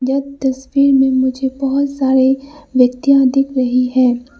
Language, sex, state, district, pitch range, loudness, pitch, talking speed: Hindi, female, Arunachal Pradesh, Lower Dibang Valley, 260-275 Hz, -15 LUFS, 265 Hz, 135 wpm